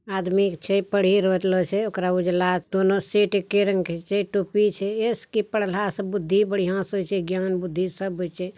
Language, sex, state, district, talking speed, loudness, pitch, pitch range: Angika, male, Bihar, Bhagalpur, 195 wpm, -23 LUFS, 195 Hz, 185-200 Hz